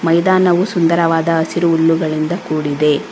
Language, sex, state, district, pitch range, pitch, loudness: Kannada, female, Karnataka, Bangalore, 155-170 Hz, 165 Hz, -15 LUFS